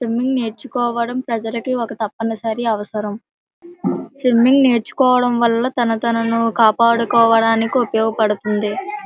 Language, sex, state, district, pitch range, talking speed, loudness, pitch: Telugu, female, Andhra Pradesh, Srikakulam, 225-245 Hz, 100 wpm, -17 LUFS, 230 Hz